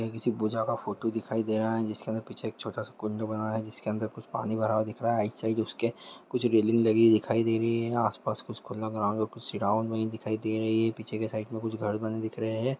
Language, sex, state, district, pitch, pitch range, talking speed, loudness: Hindi, male, Bihar, Lakhisarai, 110 Hz, 110-115 Hz, 225 wpm, -30 LUFS